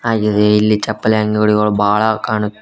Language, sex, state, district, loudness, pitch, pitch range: Kannada, male, Karnataka, Koppal, -14 LUFS, 105 Hz, 105-110 Hz